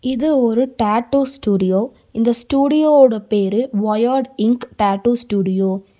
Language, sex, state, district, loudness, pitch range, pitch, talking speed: Tamil, female, Tamil Nadu, Nilgiris, -17 LUFS, 205-260 Hz, 235 Hz, 130 wpm